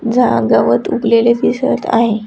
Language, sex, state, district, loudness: Marathi, female, Maharashtra, Dhule, -13 LUFS